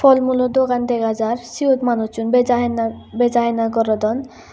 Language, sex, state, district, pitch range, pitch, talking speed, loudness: Chakma, female, Tripura, West Tripura, 225-250 Hz, 240 Hz, 160 wpm, -18 LUFS